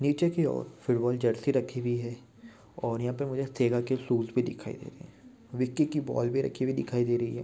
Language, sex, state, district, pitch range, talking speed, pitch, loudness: Hindi, male, Maharashtra, Sindhudurg, 120-135 Hz, 240 wpm, 125 Hz, -30 LUFS